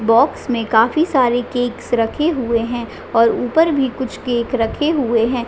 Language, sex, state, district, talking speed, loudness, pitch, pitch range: Hindi, female, Chhattisgarh, Raigarh, 175 wpm, -17 LUFS, 245 Hz, 230-265 Hz